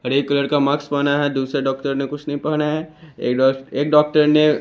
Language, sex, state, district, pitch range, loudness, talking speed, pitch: Hindi, male, Chandigarh, Chandigarh, 140-150 Hz, -19 LUFS, 245 wpm, 145 Hz